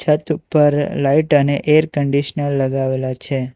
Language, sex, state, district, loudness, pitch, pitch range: Gujarati, male, Gujarat, Valsad, -17 LUFS, 145 Hz, 135-150 Hz